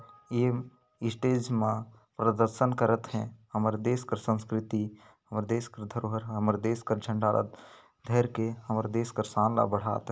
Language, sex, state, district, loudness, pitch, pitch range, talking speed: Sadri, male, Chhattisgarh, Jashpur, -30 LUFS, 115 Hz, 110-120 Hz, 155 wpm